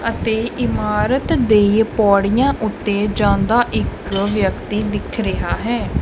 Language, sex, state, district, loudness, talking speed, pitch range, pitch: Punjabi, male, Punjab, Kapurthala, -17 LUFS, 110 wpm, 205-225 Hz, 210 Hz